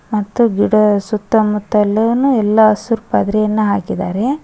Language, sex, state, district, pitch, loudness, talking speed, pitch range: Kannada, female, Karnataka, Koppal, 215 Hz, -14 LUFS, 120 wpm, 210-225 Hz